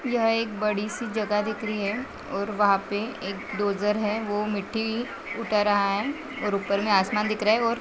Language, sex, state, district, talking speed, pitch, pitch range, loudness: Hindi, female, Chhattisgarh, Raigarh, 200 wpm, 210 Hz, 205-225 Hz, -26 LUFS